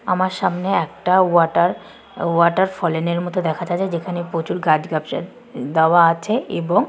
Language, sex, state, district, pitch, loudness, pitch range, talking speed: Bengali, female, West Bengal, Kolkata, 175 Hz, -19 LUFS, 170-185 Hz, 130 wpm